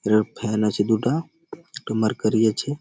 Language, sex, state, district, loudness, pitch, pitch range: Bengali, male, West Bengal, Malda, -22 LUFS, 110 Hz, 110-135 Hz